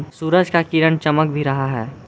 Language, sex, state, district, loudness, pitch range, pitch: Hindi, male, Jharkhand, Garhwa, -18 LUFS, 140-160 Hz, 155 Hz